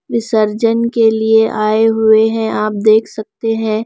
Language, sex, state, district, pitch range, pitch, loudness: Hindi, female, Bihar, Kaimur, 215-225 Hz, 220 Hz, -13 LUFS